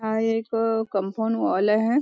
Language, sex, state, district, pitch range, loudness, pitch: Marathi, female, Maharashtra, Nagpur, 215-225 Hz, -23 LUFS, 225 Hz